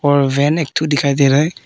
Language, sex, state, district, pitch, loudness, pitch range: Hindi, female, Arunachal Pradesh, Papum Pare, 145 Hz, -15 LUFS, 140-150 Hz